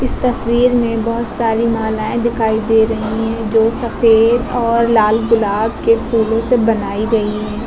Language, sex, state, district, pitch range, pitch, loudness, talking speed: Hindi, female, Uttar Pradesh, Lucknow, 220-235 Hz, 225 Hz, -15 LUFS, 165 wpm